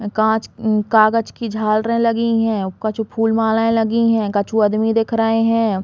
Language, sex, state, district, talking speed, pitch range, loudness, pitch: Bundeli, female, Uttar Pradesh, Hamirpur, 165 wpm, 215-225 Hz, -17 LUFS, 225 Hz